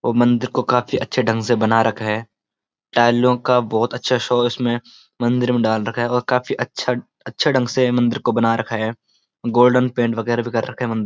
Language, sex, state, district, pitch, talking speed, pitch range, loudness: Hindi, male, Uttarakhand, Uttarkashi, 120 Hz, 220 wpm, 115-125 Hz, -19 LUFS